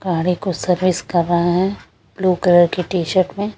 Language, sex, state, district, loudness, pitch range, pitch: Hindi, female, Punjab, Pathankot, -17 LUFS, 175-185 Hz, 180 Hz